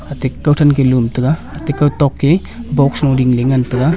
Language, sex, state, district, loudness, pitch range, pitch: Wancho, male, Arunachal Pradesh, Longding, -14 LUFS, 130-150 Hz, 140 Hz